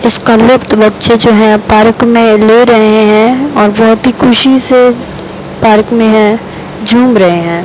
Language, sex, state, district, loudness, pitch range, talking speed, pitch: Hindi, female, Rajasthan, Bikaner, -6 LUFS, 215-240 Hz, 170 wpm, 225 Hz